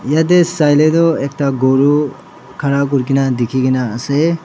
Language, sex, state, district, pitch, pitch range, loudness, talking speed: Nagamese, male, Nagaland, Dimapur, 140 Hz, 130-155 Hz, -14 LUFS, 120 wpm